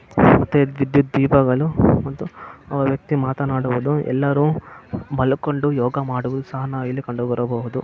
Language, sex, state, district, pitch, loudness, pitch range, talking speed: Kannada, male, Karnataka, Bellary, 135 Hz, -20 LUFS, 130-140 Hz, 115 wpm